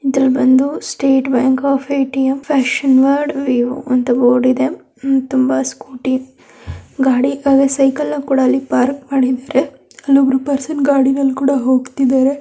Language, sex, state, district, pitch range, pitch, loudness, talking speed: Kannada, female, Karnataka, Belgaum, 260-275 Hz, 270 Hz, -15 LUFS, 120 wpm